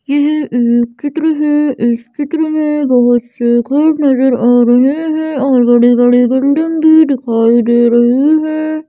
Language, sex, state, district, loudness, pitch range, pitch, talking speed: Hindi, female, Madhya Pradesh, Bhopal, -11 LUFS, 240-305 Hz, 270 Hz, 155 wpm